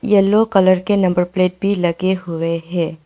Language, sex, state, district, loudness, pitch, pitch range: Hindi, female, West Bengal, Alipurduar, -16 LUFS, 185 Hz, 175-195 Hz